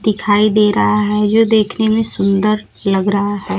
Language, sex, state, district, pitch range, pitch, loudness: Hindi, female, Bihar, Kaimur, 200-215 Hz, 210 Hz, -14 LUFS